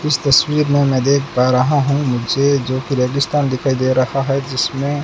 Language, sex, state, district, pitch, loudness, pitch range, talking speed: Hindi, male, Rajasthan, Bikaner, 135 Hz, -16 LUFS, 130-145 Hz, 205 wpm